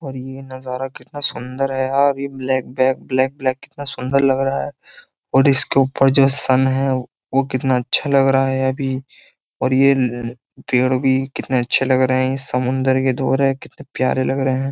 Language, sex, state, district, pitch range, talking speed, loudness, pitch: Hindi, male, Uttar Pradesh, Jyotiba Phule Nagar, 130-135 Hz, 200 wpm, -18 LUFS, 130 Hz